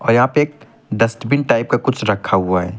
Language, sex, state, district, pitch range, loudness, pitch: Hindi, male, Uttar Pradesh, Lucknow, 110-140 Hz, -17 LUFS, 115 Hz